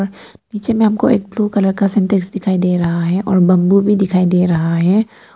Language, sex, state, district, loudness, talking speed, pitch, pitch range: Hindi, female, Arunachal Pradesh, Papum Pare, -14 LUFS, 215 wpm, 195 Hz, 180-210 Hz